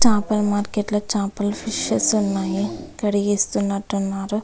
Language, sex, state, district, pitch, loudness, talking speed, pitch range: Telugu, female, Andhra Pradesh, Visakhapatnam, 205 Hz, -22 LUFS, 110 wpm, 200-210 Hz